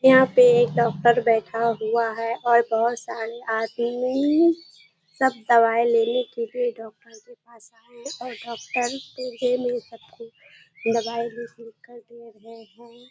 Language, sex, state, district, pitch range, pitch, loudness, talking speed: Hindi, female, Bihar, Kishanganj, 230-255 Hz, 235 Hz, -22 LUFS, 115 wpm